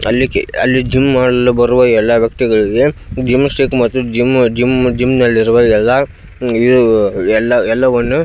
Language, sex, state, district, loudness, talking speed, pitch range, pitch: Kannada, male, Karnataka, Belgaum, -12 LUFS, 115 wpm, 115-130 Hz, 125 Hz